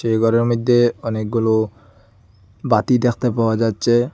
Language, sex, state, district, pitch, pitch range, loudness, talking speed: Bengali, male, Assam, Hailakandi, 115 Hz, 110-120 Hz, -18 LUFS, 115 wpm